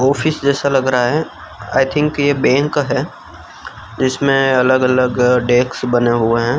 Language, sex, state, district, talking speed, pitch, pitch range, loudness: Hindi, male, Gujarat, Gandhinagar, 155 wpm, 130 Hz, 125-140 Hz, -15 LUFS